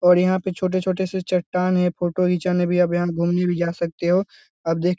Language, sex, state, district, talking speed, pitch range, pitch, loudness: Hindi, male, Bihar, Lakhisarai, 240 wpm, 175-185 Hz, 180 Hz, -21 LUFS